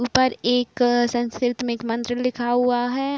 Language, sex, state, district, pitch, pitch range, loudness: Hindi, female, Uttar Pradesh, Budaun, 245 Hz, 240-250 Hz, -22 LUFS